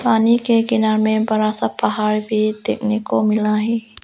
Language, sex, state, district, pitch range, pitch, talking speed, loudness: Hindi, female, Arunachal Pradesh, Lower Dibang Valley, 215-225 Hz, 215 Hz, 180 wpm, -18 LUFS